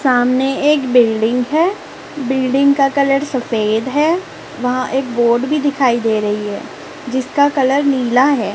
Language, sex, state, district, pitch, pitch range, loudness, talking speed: Hindi, female, Chhattisgarh, Raipur, 260 Hz, 240-280 Hz, -15 LUFS, 145 wpm